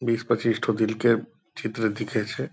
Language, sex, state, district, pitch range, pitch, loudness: Hindi, male, Bihar, Purnia, 110-115 Hz, 110 Hz, -25 LUFS